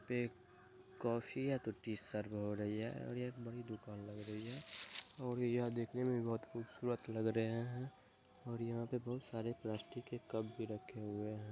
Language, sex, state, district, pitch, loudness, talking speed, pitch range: Hindi, male, Bihar, Gopalganj, 115 Hz, -43 LUFS, 190 wpm, 110-120 Hz